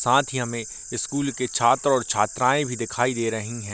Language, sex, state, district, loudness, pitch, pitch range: Hindi, male, Bihar, Darbhanga, -23 LUFS, 120 Hz, 115-130 Hz